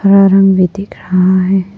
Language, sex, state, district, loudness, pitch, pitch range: Hindi, female, Arunachal Pradesh, Papum Pare, -10 LUFS, 195 Hz, 185-195 Hz